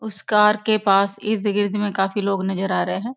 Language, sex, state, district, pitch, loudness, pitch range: Hindi, female, Bihar, Sitamarhi, 205 Hz, -20 LUFS, 195-215 Hz